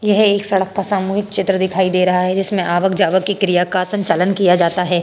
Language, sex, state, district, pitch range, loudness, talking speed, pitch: Hindi, female, Uttar Pradesh, Hamirpur, 180-200 Hz, -16 LUFS, 240 wpm, 190 Hz